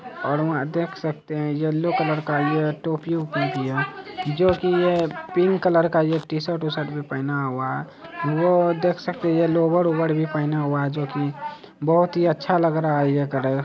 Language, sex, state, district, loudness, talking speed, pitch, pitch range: Hindi, male, Bihar, Araria, -22 LUFS, 195 wpm, 155 Hz, 145-170 Hz